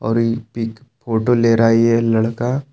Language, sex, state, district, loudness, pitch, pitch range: Hindi, male, Jharkhand, Palamu, -17 LUFS, 115 Hz, 115-120 Hz